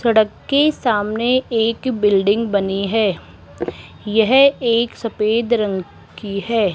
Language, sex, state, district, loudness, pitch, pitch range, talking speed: Hindi, female, Rajasthan, Jaipur, -18 LUFS, 220 Hz, 200-235 Hz, 115 wpm